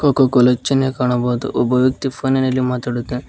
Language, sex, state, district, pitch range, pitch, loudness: Kannada, male, Karnataka, Koppal, 125-135 Hz, 130 Hz, -17 LUFS